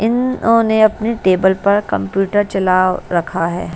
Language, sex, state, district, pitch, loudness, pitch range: Hindi, female, Bihar, West Champaran, 195 Hz, -15 LUFS, 185-220 Hz